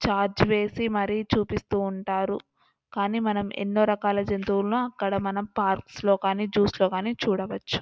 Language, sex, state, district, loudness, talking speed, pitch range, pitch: Telugu, female, Andhra Pradesh, Anantapur, -26 LUFS, 160 wpm, 195-210 Hz, 200 Hz